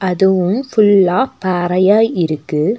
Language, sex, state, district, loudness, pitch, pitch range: Tamil, female, Tamil Nadu, Nilgiris, -14 LUFS, 185 Hz, 180-210 Hz